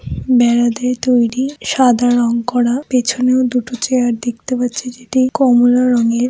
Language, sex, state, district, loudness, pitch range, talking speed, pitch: Bengali, female, West Bengal, Jalpaiguri, -15 LUFS, 240-255 Hz, 135 wpm, 245 Hz